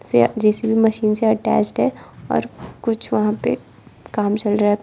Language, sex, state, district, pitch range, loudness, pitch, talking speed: Hindi, female, Arunachal Pradesh, Lower Dibang Valley, 210-220 Hz, -19 LUFS, 215 Hz, 175 wpm